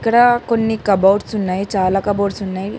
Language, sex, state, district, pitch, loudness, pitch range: Telugu, female, Telangana, Hyderabad, 200 Hz, -16 LUFS, 195-225 Hz